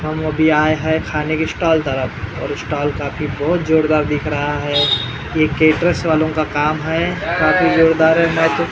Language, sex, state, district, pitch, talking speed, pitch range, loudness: Hindi, male, Maharashtra, Gondia, 155 Hz, 185 wpm, 145-160 Hz, -16 LUFS